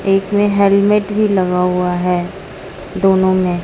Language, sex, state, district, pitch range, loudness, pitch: Hindi, female, Bihar, Katihar, 180-200 Hz, -14 LUFS, 190 Hz